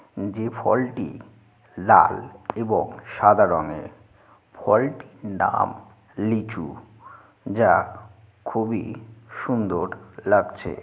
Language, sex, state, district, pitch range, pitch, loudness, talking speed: Bengali, male, West Bengal, Jalpaiguri, 105-110 Hz, 110 Hz, -22 LUFS, 70 wpm